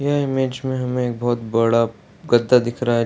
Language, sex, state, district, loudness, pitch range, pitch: Hindi, male, Bihar, Samastipur, -20 LUFS, 115-130 Hz, 120 Hz